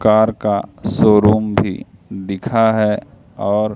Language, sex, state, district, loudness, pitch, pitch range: Hindi, male, Madhya Pradesh, Katni, -16 LUFS, 105 Hz, 100-110 Hz